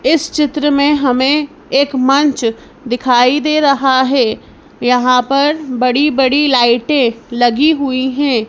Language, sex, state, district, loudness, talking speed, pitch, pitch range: Hindi, female, Madhya Pradesh, Bhopal, -13 LUFS, 125 wpm, 270 Hz, 250-290 Hz